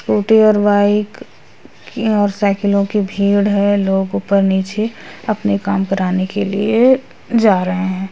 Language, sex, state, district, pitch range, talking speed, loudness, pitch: Hindi, female, Bihar, Purnia, 195-215 Hz, 150 wpm, -15 LUFS, 205 Hz